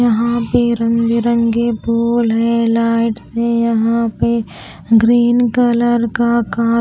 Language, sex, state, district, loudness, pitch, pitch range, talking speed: Hindi, female, Maharashtra, Gondia, -15 LUFS, 235 Hz, 230-235 Hz, 115 wpm